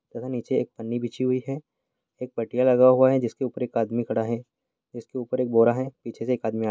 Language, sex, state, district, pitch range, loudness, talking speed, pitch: Hindi, male, Bihar, Bhagalpur, 115-130 Hz, -24 LUFS, 275 wpm, 125 Hz